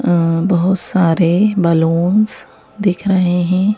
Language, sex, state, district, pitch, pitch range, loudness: Hindi, female, Madhya Pradesh, Bhopal, 185 Hz, 170-200 Hz, -14 LUFS